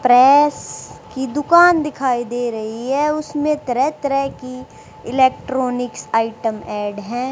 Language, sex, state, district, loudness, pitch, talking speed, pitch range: Hindi, male, Haryana, Rohtak, -18 LUFS, 260 Hz, 125 wpm, 240-290 Hz